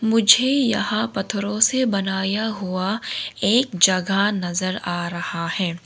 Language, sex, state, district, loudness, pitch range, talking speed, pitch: Hindi, female, Arunachal Pradesh, Longding, -20 LUFS, 185-220 Hz, 125 wpm, 195 Hz